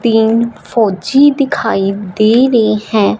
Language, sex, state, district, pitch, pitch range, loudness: Hindi, female, Punjab, Fazilka, 220 Hz, 210-235 Hz, -12 LUFS